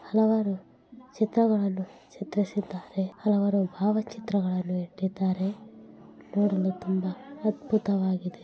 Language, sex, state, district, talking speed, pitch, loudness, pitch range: Kannada, female, Karnataka, Bellary, 70 wpm, 200 Hz, -28 LUFS, 185-215 Hz